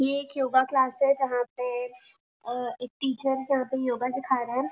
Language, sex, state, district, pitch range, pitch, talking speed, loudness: Hindi, female, Chhattisgarh, Raigarh, 250-270 Hz, 260 Hz, 205 wpm, -27 LUFS